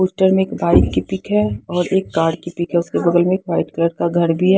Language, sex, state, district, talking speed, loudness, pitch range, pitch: Hindi, female, Haryana, Jhajjar, 290 wpm, -17 LUFS, 165-185 Hz, 170 Hz